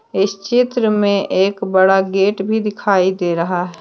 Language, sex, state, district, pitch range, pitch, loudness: Hindi, female, Jharkhand, Deoghar, 190-210 Hz, 195 Hz, -16 LUFS